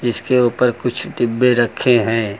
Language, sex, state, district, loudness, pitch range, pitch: Hindi, male, Uttar Pradesh, Lucknow, -16 LUFS, 115-125 Hz, 120 Hz